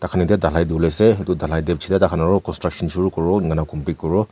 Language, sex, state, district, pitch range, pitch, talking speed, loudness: Nagamese, male, Nagaland, Kohima, 80-95 Hz, 90 Hz, 235 wpm, -19 LUFS